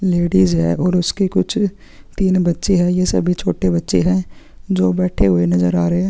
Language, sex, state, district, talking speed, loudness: Hindi, male, Chhattisgarh, Kabirdham, 195 wpm, -17 LUFS